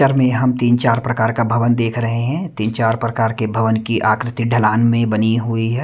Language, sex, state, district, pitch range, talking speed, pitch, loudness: Hindi, male, Himachal Pradesh, Shimla, 115-120 Hz, 205 wpm, 115 Hz, -17 LUFS